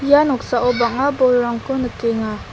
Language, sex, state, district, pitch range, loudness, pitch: Garo, female, Meghalaya, South Garo Hills, 235-270 Hz, -18 LUFS, 245 Hz